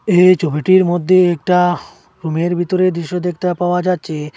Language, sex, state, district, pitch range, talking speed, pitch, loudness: Bengali, male, Assam, Hailakandi, 170-185 Hz, 135 wpm, 180 Hz, -15 LUFS